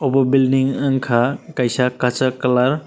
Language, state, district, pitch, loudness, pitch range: Kokborok, Tripura, West Tripura, 130 Hz, -18 LUFS, 125-135 Hz